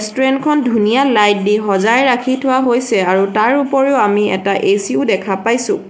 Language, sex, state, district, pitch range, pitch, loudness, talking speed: Assamese, female, Assam, Sonitpur, 200-265 Hz, 225 Hz, -13 LUFS, 185 wpm